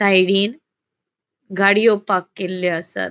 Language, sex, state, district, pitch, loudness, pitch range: Konkani, female, Goa, North and South Goa, 195 Hz, -18 LUFS, 185-205 Hz